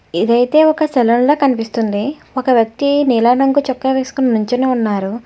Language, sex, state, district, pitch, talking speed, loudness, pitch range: Telugu, female, Telangana, Hyderabad, 255 Hz, 135 wpm, -14 LUFS, 230-275 Hz